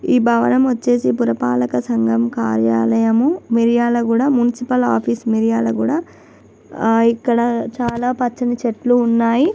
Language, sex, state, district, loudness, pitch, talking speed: Telugu, female, Telangana, Nalgonda, -17 LUFS, 235 Hz, 95 wpm